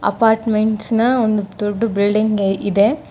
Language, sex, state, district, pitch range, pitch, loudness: Kannada, female, Karnataka, Koppal, 205-225 Hz, 215 Hz, -17 LUFS